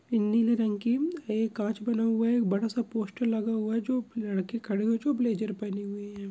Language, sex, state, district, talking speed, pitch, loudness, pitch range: Hindi, male, Bihar, Bhagalpur, 235 wpm, 225 Hz, -29 LUFS, 210-235 Hz